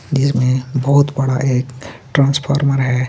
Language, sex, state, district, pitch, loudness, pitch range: Hindi, male, Jharkhand, Garhwa, 135 Hz, -16 LUFS, 130-140 Hz